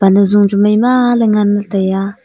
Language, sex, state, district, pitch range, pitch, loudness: Wancho, female, Arunachal Pradesh, Longding, 200-215 Hz, 205 Hz, -12 LUFS